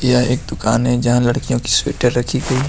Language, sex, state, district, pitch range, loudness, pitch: Hindi, male, Jharkhand, Deoghar, 120-130 Hz, -17 LUFS, 125 Hz